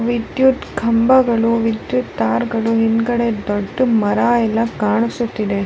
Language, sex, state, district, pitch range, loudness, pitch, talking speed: Kannada, female, Karnataka, Raichur, 210-235 Hz, -17 LUFS, 230 Hz, 105 wpm